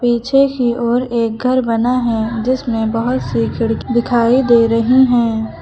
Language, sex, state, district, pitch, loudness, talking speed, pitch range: Hindi, male, Uttar Pradesh, Lucknow, 235 Hz, -15 LUFS, 160 wpm, 230-250 Hz